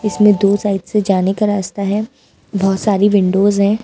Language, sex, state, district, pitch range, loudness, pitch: Hindi, female, Bihar, West Champaran, 195-210 Hz, -15 LUFS, 200 Hz